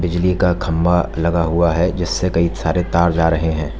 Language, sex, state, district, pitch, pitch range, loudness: Hindi, male, Uttar Pradesh, Lalitpur, 85 Hz, 80-90 Hz, -17 LUFS